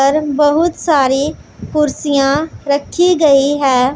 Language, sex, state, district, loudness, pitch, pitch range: Hindi, female, Punjab, Pathankot, -14 LUFS, 290 Hz, 275-305 Hz